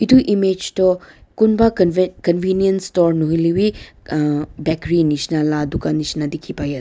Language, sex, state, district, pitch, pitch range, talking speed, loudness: Nagamese, female, Nagaland, Dimapur, 175 Hz, 155-190 Hz, 140 wpm, -18 LUFS